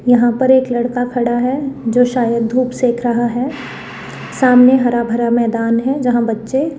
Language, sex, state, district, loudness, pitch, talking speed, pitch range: Hindi, female, Rajasthan, Jaipur, -14 LUFS, 245 Hz, 175 wpm, 235-255 Hz